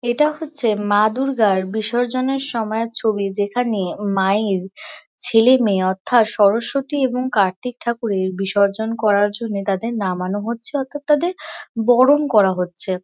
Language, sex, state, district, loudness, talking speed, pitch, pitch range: Bengali, female, West Bengal, Kolkata, -18 LUFS, 120 wpm, 220 Hz, 200-250 Hz